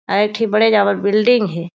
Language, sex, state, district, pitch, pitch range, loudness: Chhattisgarhi, female, Chhattisgarh, Raigarh, 210 Hz, 200-220 Hz, -15 LUFS